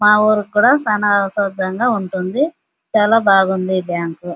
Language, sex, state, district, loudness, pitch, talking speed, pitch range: Telugu, female, Andhra Pradesh, Anantapur, -16 LUFS, 205 Hz, 150 wpm, 190-215 Hz